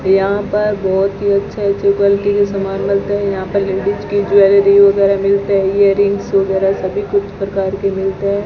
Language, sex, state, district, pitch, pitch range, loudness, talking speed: Hindi, female, Rajasthan, Bikaner, 200 Hz, 195-200 Hz, -14 LUFS, 190 wpm